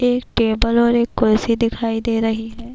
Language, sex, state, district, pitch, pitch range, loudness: Urdu, female, Bihar, Kishanganj, 230 Hz, 225-235 Hz, -18 LUFS